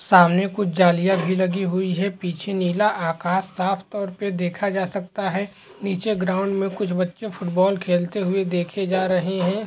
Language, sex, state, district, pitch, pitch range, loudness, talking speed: Hindi, male, Uttar Pradesh, Hamirpur, 190 Hz, 180-195 Hz, -22 LUFS, 180 wpm